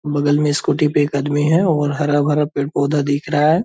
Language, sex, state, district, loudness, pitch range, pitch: Hindi, male, Bihar, Purnia, -17 LUFS, 145-150 Hz, 145 Hz